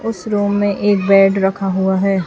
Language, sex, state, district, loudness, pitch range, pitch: Hindi, female, Chhattisgarh, Raipur, -15 LUFS, 190-205 Hz, 195 Hz